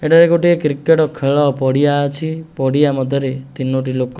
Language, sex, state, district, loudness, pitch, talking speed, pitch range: Odia, male, Odisha, Nuapada, -16 LUFS, 140 Hz, 155 wpm, 135-160 Hz